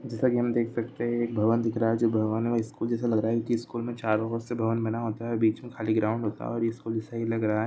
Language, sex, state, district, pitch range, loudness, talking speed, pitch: Hindi, male, Chhattisgarh, Sarguja, 110-120 Hz, -28 LUFS, 330 wpm, 115 Hz